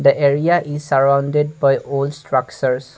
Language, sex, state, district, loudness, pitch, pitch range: English, male, Assam, Kamrup Metropolitan, -17 LUFS, 140 Hz, 135-145 Hz